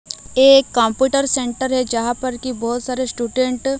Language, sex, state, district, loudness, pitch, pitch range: Hindi, female, Odisha, Malkangiri, -17 LUFS, 255 Hz, 240-265 Hz